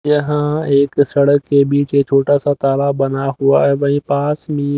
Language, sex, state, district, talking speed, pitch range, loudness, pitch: Hindi, male, Haryana, Jhajjar, 190 wpm, 140-145 Hz, -15 LUFS, 140 Hz